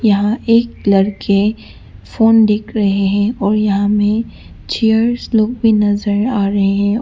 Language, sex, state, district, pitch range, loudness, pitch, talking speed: Hindi, female, Arunachal Pradesh, Papum Pare, 200-225 Hz, -14 LUFS, 210 Hz, 155 wpm